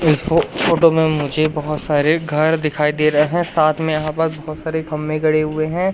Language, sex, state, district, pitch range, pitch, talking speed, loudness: Hindi, male, Madhya Pradesh, Umaria, 150-160 Hz, 155 Hz, 220 wpm, -17 LUFS